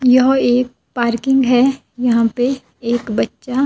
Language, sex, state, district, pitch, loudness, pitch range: Hindi, female, Himachal Pradesh, Shimla, 250 Hz, -16 LUFS, 240-260 Hz